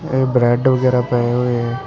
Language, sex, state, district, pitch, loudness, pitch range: Punjabi, male, Karnataka, Bangalore, 125 Hz, -16 LUFS, 120-130 Hz